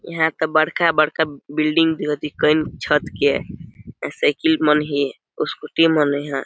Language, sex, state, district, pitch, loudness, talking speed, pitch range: Awadhi, male, Chhattisgarh, Balrampur, 155 Hz, -19 LUFS, 160 wpm, 150-160 Hz